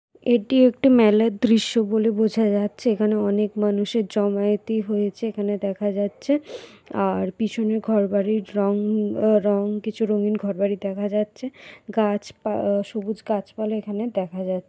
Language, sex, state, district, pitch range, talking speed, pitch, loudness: Bengali, female, West Bengal, Paschim Medinipur, 205-220 Hz, 135 wpm, 210 Hz, -22 LUFS